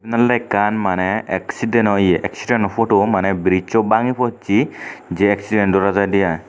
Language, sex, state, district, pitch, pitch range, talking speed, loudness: Chakma, male, Tripura, Dhalai, 100 Hz, 95-115 Hz, 140 wpm, -17 LUFS